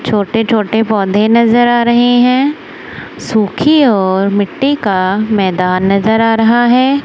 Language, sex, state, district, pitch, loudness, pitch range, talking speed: Hindi, female, Punjab, Kapurthala, 225 Hz, -11 LUFS, 200-245 Hz, 135 wpm